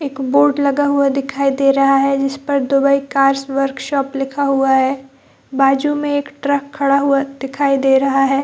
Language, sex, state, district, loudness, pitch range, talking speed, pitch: Hindi, female, Bihar, Jahanabad, -16 LUFS, 275-280 Hz, 200 wpm, 275 Hz